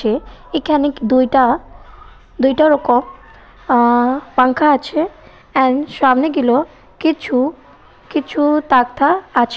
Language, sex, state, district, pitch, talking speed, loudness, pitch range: Bengali, female, West Bengal, Purulia, 270 Hz, 90 wpm, -15 LUFS, 255-300 Hz